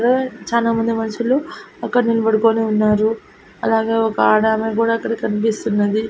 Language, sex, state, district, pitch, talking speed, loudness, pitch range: Telugu, female, Andhra Pradesh, Annamaya, 225 Hz, 110 wpm, -18 LUFS, 220-230 Hz